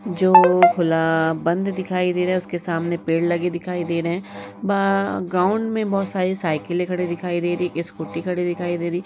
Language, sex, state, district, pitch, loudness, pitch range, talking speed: Hindi, female, Uttar Pradesh, Muzaffarnagar, 175 Hz, -21 LUFS, 170-185 Hz, 230 wpm